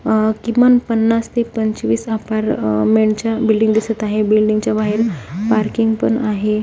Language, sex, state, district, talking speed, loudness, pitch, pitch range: Marathi, female, Maharashtra, Pune, 125 wpm, -16 LUFS, 220 Hz, 215-225 Hz